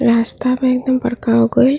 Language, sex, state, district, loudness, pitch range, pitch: Bhojpuri, female, Uttar Pradesh, Ghazipur, -16 LUFS, 230-255 Hz, 255 Hz